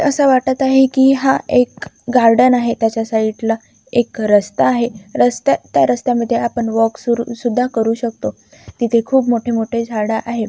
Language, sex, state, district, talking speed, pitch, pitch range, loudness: Marathi, female, Maharashtra, Chandrapur, 160 wpm, 235 Hz, 225-250 Hz, -15 LUFS